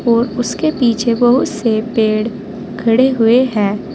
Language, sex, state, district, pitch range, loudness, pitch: Hindi, female, Uttar Pradesh, Saharanpur, 220-245 Hz, -14 LUFS, 235 Hz